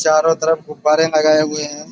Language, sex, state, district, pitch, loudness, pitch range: Hindi, male, Uttar Pradesh, Budaun, 155 Hz, -16 LUFS, 150-160 Hz